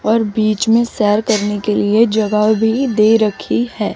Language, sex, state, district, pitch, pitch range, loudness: Hindi, female, Chandigarh, Chandigarh, 215 Hz, 210-225 Hz, -14 LUFS